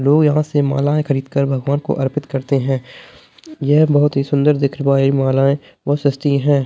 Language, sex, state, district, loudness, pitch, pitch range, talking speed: Hindi, male, Bihar, Gaya, -16 LUFS, 140 Hz, 135-145 Hz, 190 wpm